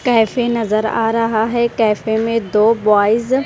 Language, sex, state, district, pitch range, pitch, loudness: Hindi, female, Punjab, Kapurthala, 220-235 Hz, 225 Hz, -15 LUFS